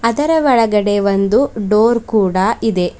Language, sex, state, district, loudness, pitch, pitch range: Kannada, female, Karnataka, Bidar, -14 LUFS, 215 Hz, 200-235 Hz